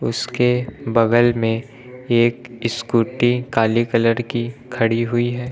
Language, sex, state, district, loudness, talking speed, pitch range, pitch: Hindi, male, Uttar Pradesh, Lucknow, -19 LUFS, 120 wpm, 115-125 Hz, 120 Hz